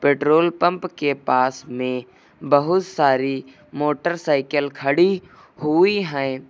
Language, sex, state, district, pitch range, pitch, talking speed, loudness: Hindi, male, Uttar Pradesh, Lucknow, 135-175 Hz, 145 Hz, 100 wpm, -20 LUFS